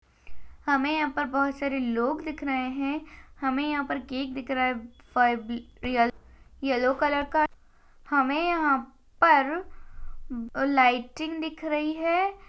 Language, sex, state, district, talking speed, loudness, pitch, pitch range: Hindi, female, Chhattisgarh, Rajnandgaon, 130 wpm, -27 LUFS, 275 Hz, 255-300 Hz